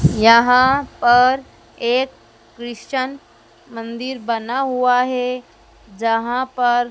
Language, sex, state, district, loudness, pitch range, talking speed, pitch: Hindi, female, Madhya Pradesh, Dhar, -17 LUFS, 235-255 Hz, 85 wpm, 245 Hz